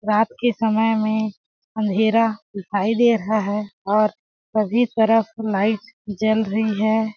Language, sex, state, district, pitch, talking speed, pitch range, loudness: Hindi, female, Chhattisgarh, Balrampur, 220 Hz, 135 wpm, 210-225 Hz, -20 LUFS